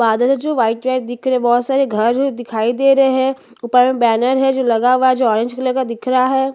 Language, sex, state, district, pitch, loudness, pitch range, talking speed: Hindi, female, Chhattisgarh, Bastar, 255 Hz, -15 LUFS, 240-265 Hz, 340 wpm